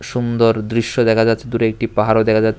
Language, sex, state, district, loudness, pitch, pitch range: Bengali, male, Tripura, West Tripura, -16 LUFS, 115 Hz, 110-115 Hz